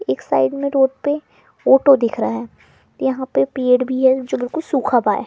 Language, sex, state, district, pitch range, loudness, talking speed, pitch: Hindi, female, Delhi, New Delhi, 225-270 Hz, -18 LUFS, 195 wpm, 260 Hz